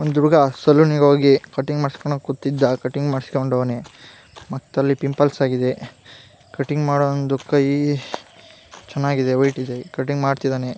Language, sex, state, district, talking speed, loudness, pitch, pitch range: Kannada, female, Karnataka, Gulbarga, 120 wpm, -19 LUFS, 140 Hz, 130-145 Hz